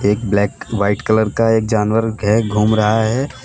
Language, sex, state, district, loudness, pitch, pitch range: Hindi, male, Uttar Pradesh, Lalitpur, -16 LUFS, 110 Hz, 105-110 Hz